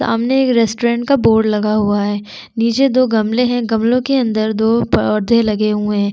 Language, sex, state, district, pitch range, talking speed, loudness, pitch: Hindi, female, Chhattisgarh, Sukma, 215-245 Hz, 195 wpm, -15 LUFS, 225 Hz